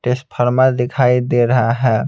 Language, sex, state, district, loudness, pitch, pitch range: Hindi, male, Bihar, Patna, -15 LUFS, 125 Hz, 120-130 Hz